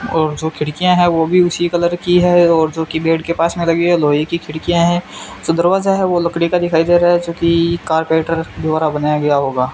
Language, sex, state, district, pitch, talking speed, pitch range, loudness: Hindi, male, Rajasthan, Bikaner, 170 Hz, 235 wpm, 160-175 Hz, -15 LUFS